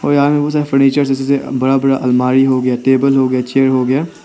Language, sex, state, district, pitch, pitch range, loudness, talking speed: Hindi, male, Arunachal Pradesh, Papum Pare, 135 Hz, 130-140 Hz, -13 LUFS, 200 wpm